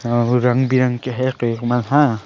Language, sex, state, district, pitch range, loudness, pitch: Chhattisgarhi, male, Chhattisgarh, Sarguja, 120-130 Hz, -18 LUFS, 125 Hz